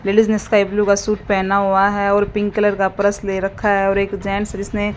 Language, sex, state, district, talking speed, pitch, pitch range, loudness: Hindi, female, Haryana, Jhajjar, 255 wpm, 200 Hz, 195-205 Hz, -17 LUFS